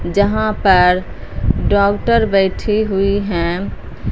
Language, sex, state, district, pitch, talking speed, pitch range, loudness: Hindi, female, Punjab, Fazilka, 200 Hz, 85 wpm, 190-210 Hz, -15 LUFS